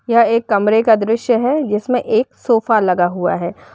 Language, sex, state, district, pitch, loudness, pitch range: Hindi, female, Uttar Pradesh, Shamli, 225 Hz, -15 LUFS, 210-235 Hz